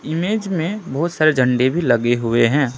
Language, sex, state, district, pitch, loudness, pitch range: Hindi, male, West Bengal, Alipurduar, 145 Hz, -18 LUFS, 125-170 Hz